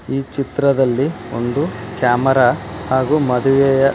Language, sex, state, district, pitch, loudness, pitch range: Kannada, male, Karnataka, Dharwad, 135 Hz, -17 LUFS, 125-140 Hz